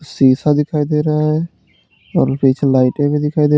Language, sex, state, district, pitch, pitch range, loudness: Hindi, male, Uttar Pradesh, Lalitpur, 150 Hz, 135-150 Hz, -15 LUFS